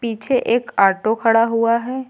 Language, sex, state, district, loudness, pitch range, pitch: Hindi, female, Uttar Pradesh, Lucknow, -17 LUFS, 225-240 Hz, 230 Hz